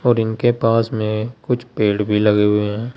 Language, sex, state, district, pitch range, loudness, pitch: Hindi, male, Uttar Pradesh, Saharanpur, 105-120 Hz, -18 LUFS, 110 Hz